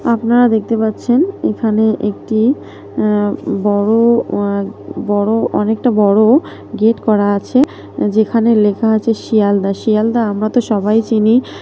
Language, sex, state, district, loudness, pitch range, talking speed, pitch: Bengali, female, West Bengal, North 24 Parganas, -14 LUFS, 205-230 Hz, 125 wpm, 220 Hz